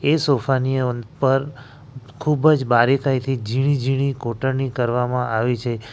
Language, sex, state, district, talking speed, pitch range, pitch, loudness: Gujarati, male, Gujarat, Valsad, 120 wpm, 125-140 Hz, 130 Hz, -20 LUFS